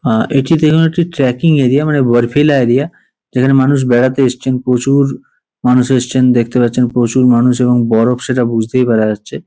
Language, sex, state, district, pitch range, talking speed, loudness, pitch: Bengali, male, West Bengal, Paschim Medinipur, 120-135 Hz, 180 wpm, -12 LUFS, 125 Hz